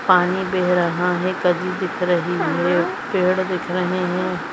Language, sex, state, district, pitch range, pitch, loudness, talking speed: Hindi, female, Maharashtra, Nagpur, 175-185 Hz, 180 Hz, -20 LUFS, 145 wpm